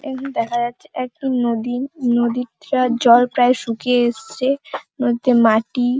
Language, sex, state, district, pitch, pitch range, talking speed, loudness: Bengali, female, West Bengal, Paschim Medinipur, 245 Hz, 240-265 Hz, 130 wpm, -18 LUFS